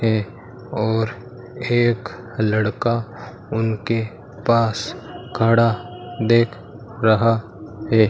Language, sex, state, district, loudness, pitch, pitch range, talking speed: Hindi, male, Rajasthan, Bikaner, -20 LUFS, 115 Hz, 110-120 Hz, 75 wpm